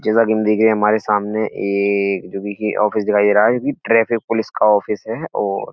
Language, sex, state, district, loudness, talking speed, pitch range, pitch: Hindi, male, Uttar Pradesh, Etah, -17 LUFS, 240 wpm, 105-110 Hz, 105 Hz